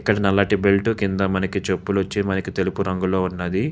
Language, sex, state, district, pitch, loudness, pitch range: Telugu, male, Telangana, Hyderabad, 95 Hz, -21 LUFS, 95-100 Hz